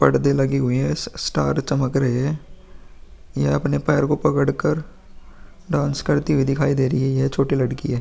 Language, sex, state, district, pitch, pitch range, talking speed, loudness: Hindi, male, Bihar, Vaishali, 135 Hz, 130-140 Hz, 215 wpm, -21 LUFS